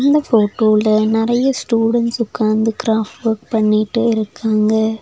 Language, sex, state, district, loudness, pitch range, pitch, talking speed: Tamil, female, Tamil Nadu, Nilgiris, -16 LUFS, 215-235 Hz, 220 Hz, 110 wpm